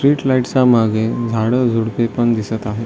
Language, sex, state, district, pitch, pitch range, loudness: Marathi, male, Maharashtra, Solapur, 115 Hz, 110-125 Hz, -16 LUFS